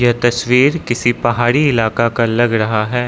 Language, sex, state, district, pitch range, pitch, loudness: Hindi, male, Arunachal Pradesh, Lower Dibang Valley, 115-125 Hz, 120 Hz, -14 LUFS